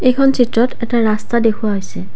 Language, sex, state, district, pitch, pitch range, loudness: Assamese, female, Assam, Kamrup Metropolitan, 235 Hz, 215-245 Hz, -16 LUFS